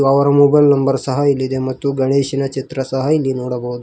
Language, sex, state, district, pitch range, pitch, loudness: Kannada, male, Karnataka, Koppal, 130-140 Hz, 135 Hz, -16 LUFS